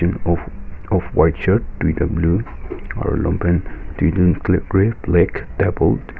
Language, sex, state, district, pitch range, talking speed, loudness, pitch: Nagamese, male, Nagaland, Kohima, 80-90 Hz, 125 wpm, -18 LUFS, 85 Hz